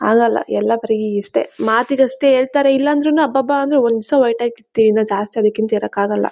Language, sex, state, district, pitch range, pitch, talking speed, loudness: Kannada, female, Karnataka, Bellary, 220-275 Hz, 235 Hz, 115 wpm, -16 LUFS